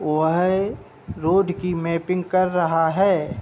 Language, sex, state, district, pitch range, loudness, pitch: Hindi, male, Uttar Pradesh, Hamirpur, 165-185 Hz, -21 LUFS, 180 Hz